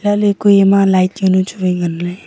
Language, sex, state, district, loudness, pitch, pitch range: Wancho, female, Arunachal Pradesh, Longding, -13 LUFS, 190 Hz, 185-205 Hz